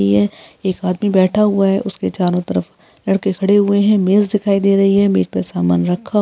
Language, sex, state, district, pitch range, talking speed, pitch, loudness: Hindi, female, Chhattisgarh, Bilaspur, 180-200 Hz, 220 wpm, 195 Hz, -15 LUFS